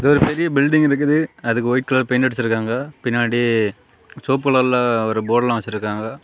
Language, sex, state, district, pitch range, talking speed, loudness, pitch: Tamil, male, Tamil Nadu, Kanyakumari, 115-140 Hz, 135 wpm, -18 LUFS, 125 Hz